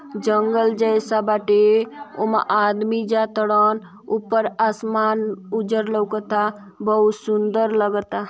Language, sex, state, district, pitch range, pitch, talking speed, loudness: Bhojpuri, female, Uttar Pradesh, Ghazipur, 210-220 Hz, 215 Hz, 100 wpm, -20 LUFS